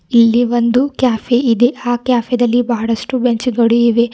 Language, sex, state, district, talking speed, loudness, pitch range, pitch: Kannada, female, Karnataka, Bidar, 145 wpm, -14 LUFS, 235-245 Hz, 240 Hz